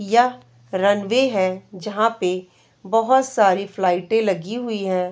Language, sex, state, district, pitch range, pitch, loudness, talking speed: Hindi, female, Uttar Pradesh, Varanasi, 185-225 Hz, 200 Hz, -20 LUFS, 130 wpm